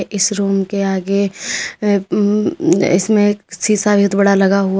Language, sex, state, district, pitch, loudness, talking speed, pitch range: Hindi, female, Uttar Pradesh, Lalitpur, 200 Hz, -15 LUFS, 140 wpm, 195-205 Hz